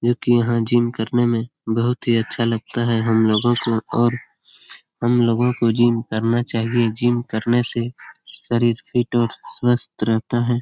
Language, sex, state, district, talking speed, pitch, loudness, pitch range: Hindi, male, Bihar, Lakhisarai, 170 wpm, 120 Hz, -20 LUFS, 115-120 Hz